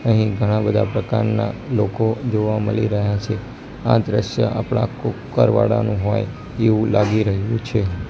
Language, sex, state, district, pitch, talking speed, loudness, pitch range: Gujarati, male, Gujarat, Gandhinagar, 110 Hz, 140 wpm, -20 LUFS, 105-110 Hz